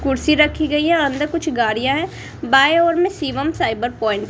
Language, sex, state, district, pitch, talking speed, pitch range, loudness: Hindi, female, Bihar, Kaimur, 295 Hz, 210 wpm, 265-330 Hz, -17 LUFS